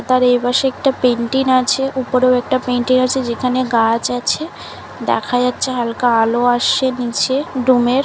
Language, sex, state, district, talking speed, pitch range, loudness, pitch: Bengali, female, West Bengal, Paschim Medinipur, 155 wpm, 245-260 Hz, -16 LUFS, 250 Hz